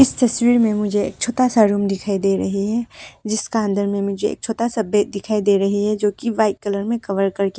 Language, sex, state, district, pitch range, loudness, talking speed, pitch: Hindi, female, Arunachal Pradesh, Papum Pare, 200-225 Hz, -19 LUFS, 245 wpm, 210 Hz